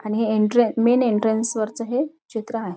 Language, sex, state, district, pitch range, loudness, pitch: Marathi, female, Maharashtra, Nagpur, 220-240 Hz, -21 LUFS, 225 Hz